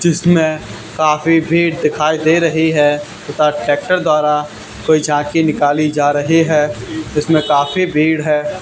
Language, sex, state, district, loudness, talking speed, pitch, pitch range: Hindi, male, Haryana, Charkhi Dadri, -14 LUFS, 140 wpm, 155 Hz, 145-160 Hz